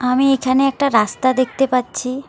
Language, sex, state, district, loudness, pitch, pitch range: Bengali, female, West Bengal, Alipurduar, -17 LUFS, 260 Hz, 250-270 Hz